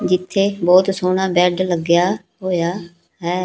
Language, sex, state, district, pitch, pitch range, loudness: Punjabi, female, Punjab, Pathankot, 180 Hz, 175-190 Hz, -17 LUFS